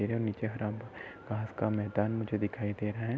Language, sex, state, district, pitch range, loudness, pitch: Hindi, male, Uttar Pradesh, Gorakhpur, 105-110 Hz, -34 LUFS, 105 Hz